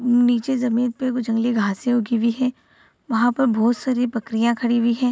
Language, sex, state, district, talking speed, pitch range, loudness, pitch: Hindi, female, Bihar, Saharsa, 200 wpm, 230-250 Hz, -20 LUFS, 240 Hz